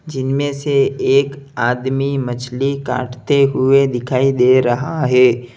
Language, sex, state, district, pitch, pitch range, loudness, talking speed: Hindi, male, Uttar Pradesh, Lalitpur, 130 Hz, 125-140 Hz, -16 LUFS, 120 wpm